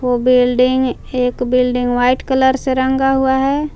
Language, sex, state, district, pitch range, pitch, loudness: Hindi, female, Jharkhand, Palamu, 250-265 Hz, 255 Hz, -15 LUFS